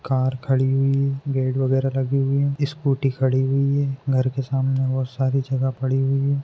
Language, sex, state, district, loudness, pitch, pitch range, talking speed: Hindi, male, Maharashtra, Pune, -22 LUFS, 135 Hz, 130-135 Hz, 205 wpm